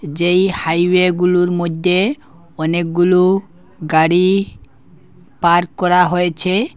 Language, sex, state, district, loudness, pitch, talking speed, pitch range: Bengali, male, Assam, Hailakandi, -15 LUFS, 175 Hz, 70 wpm, 170-180 Hz